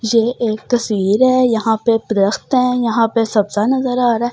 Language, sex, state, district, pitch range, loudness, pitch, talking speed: Hindi, female, Delhi, New Delhi, 220-245 Hz, -15 LUFS, 230 Hz, 220 wpm